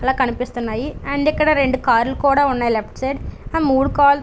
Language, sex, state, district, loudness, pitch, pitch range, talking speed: Telugu, female, Andhra Pradesh, Visakhapatnam, -18 LUFS, 265 Hz, 250-285 Hz, 185 wpm